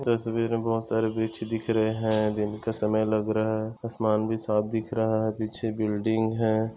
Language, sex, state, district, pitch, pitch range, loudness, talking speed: Hindi, male, Chhattisgarh, Korba, 110 Hz, 110-115 Hz, -26 LUFS, 205 wpm